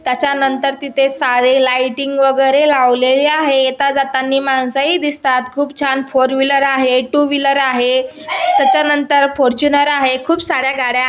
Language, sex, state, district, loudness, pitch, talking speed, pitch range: Marathi, female, Maharashtra, Aurangabad, -13 LUFS, 270 Hz, 115 wpm, 260-285 Hz